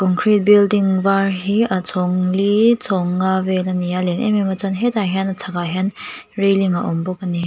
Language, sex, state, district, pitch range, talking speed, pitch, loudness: Mizo, female, Mizoram, Aizawl, 185-200 Hz, 235 wpm, 190 Hz, -17 LUFS